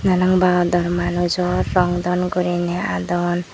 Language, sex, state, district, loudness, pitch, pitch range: Chakma, female, Tripura, Dhalai, -19 LUFS, 175 Hz, 175-180 Hz